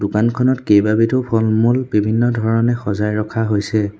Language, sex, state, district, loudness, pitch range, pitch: Assamese, male, Assam, Sonitpur, -16 LUFS, 105-120 Hz, 110 Hz